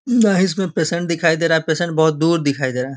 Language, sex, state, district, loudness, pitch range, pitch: Hindi, male, Bihar, Gopalganj, -17 LUFS, 160-175 Hz, 165 Hz